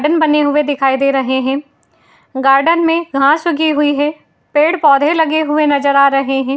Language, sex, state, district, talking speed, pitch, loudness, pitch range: Hindi, female, Uttar Pradesh, Etah, 180 wpm, 290 Hz, -13 LUFS, 275-310 Hz